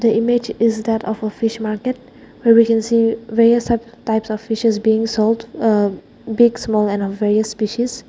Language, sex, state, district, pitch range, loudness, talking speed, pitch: English, female, Nagaland, Dimapur, 220-235 Hz, -17 LUFS, 185 wpm, 225 Hz